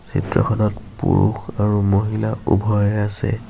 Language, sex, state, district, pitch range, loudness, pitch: Assamese, male, Assam, Kamrup Metropolitan, 105-110 Hz, -18 LUFS, 105 Hz